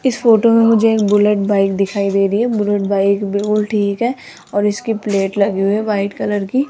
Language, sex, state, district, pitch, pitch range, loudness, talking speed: Hindi, female, Rajasthan, Jaipur, 205 Hz, 200-225 Hz, -15 LUFS, 225 wpm